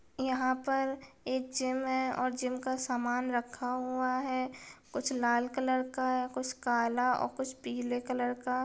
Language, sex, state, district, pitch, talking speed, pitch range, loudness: Hindi, female, Bihar, Gaya, 255 Hz, 175 wpm, 250-260 Hz, -33 LUFS